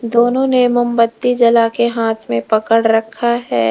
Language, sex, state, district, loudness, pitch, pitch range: Hindi, female, Uttar Pradesh, Lalitpur, -14 LUFS, 235 Hz, 225-240 Hz